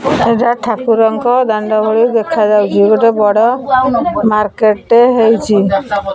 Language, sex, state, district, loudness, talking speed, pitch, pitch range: Odia, female, Odisha, Khordha, -11 LUFS, 105 wpm, 225 Hz, 210-240 Hz